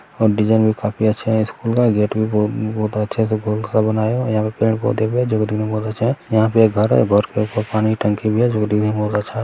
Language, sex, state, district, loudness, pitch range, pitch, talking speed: Hindi, male, Bihar, Bhagalpur, -18 LUFS, 105-110 Hz, 110 Hz, 265 wpm